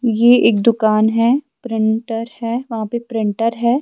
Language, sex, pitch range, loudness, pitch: Urdu, female, 220-240 Hz, -16 LUFS, 230 Hz